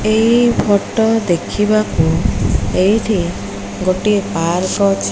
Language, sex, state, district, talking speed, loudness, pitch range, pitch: Odia, female, Odisha, Malkangiri, 80 wpm, -15 LUFS, 175-215 Hz, 200 Hz